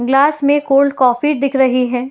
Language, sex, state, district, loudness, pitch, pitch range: Hindi, female, Uttar Pradesh, Etah, -14 LUFS, 275 Hz, 255-285 Hz